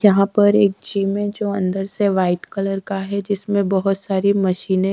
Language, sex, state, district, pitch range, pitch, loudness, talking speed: Hindi, female, Bihar, Katihar, 195-200 Hz, 195 Hz, -19 LUFS, 205 wpm